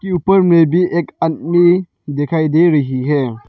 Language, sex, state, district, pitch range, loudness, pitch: Hindi, male, Arunachal Pradesh, Lower Dibang Valley, 145-175 Hz, -14 LUFS, 165 Hz